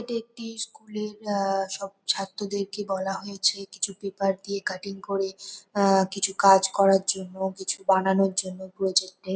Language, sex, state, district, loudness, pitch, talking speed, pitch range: Bengali, female, West Bengal, North 24 Parganas, -26 LUFS, 195 Hz, 155 wpm, 190-200 Hz